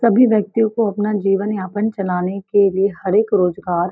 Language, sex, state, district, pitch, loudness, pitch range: Hindi, female, Uttar Pradesh, Varanasi, 200 Hz, -17 LUFS, 190-215 Hz